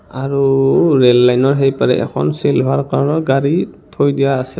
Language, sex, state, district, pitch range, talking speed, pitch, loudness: Assamese, male, Assam, Kamrup Metropolitan, 125-140 Hz, 170 wpm, 135 Hz, -14 LUFS